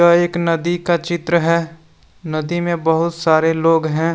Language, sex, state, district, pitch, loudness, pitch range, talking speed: Hindi, male, Jharkhand, Deoghar, 165 Hz, -17 LUFS, 160-170 Hz, 175 wpm